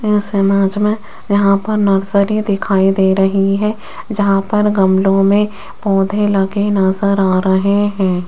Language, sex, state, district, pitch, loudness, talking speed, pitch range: Hindi, female, Rajasthan, Jaipur, 200 Hz, -14 LUFS, 145 wpm, 195-205 Hz